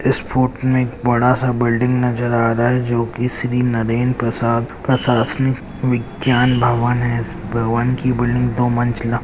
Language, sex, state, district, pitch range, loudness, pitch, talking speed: Hindi, male, Bihar, Jamui, 120-125 Hz, -18 LUFS, 120 Hz, 160 wpm